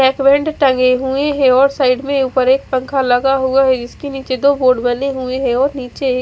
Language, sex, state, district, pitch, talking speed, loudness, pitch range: Hindi, female, Odisha, Khordha, 265 Hz, 220 wpm, -14 LUFS, 255-275 Hz